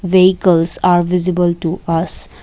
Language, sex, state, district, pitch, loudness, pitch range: English, female, Assam, Kamrup Metropolitan, 180 Hz, -13 LUFS, 170-180 Hz